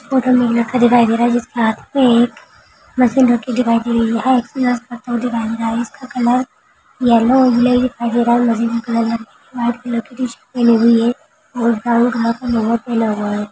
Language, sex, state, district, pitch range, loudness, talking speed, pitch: Hindi, female, Maharashtra, Nagpur, 230-250 Hz, -16 LUFS, 140 wpm, 240 Hz